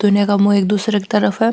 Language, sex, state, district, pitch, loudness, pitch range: Marwari, female, Rajasthan, Nagaur, 205 Hz, -15 LUFS, 200-210 Hz